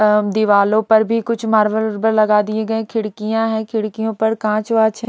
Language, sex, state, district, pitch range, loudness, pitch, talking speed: Hindi, female, Maharashtra, Mumbai Suburban, 215-225 Hz, -17 LUFS, 220 Hz, 165 wpm